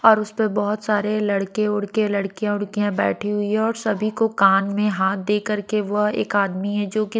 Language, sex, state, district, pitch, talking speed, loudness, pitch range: Hindi, female, Maharashtra, Mumbai Suburban, 210 Hz, 210 wpm, -21 LUFS, 205-215 Hz